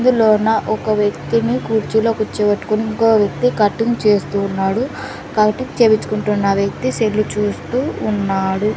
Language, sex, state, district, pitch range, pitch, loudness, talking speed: Telugu, female, Andhra Pradesh, Sri Satya Sai, 205-225 Hz, 215 Hz, -17 LUFS, 110 wpm